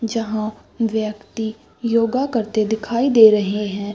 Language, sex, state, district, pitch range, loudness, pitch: Hindi, female, Bihar, Gaya, 215-230 Hz, -19 LUFS, 220 Hz